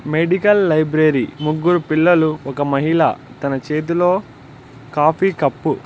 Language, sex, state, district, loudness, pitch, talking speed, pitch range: Telugu, male, Andhra Pradesh, Anantapur, -17 LUFS, 155 Hz, 100 wpm, 140-170 Hz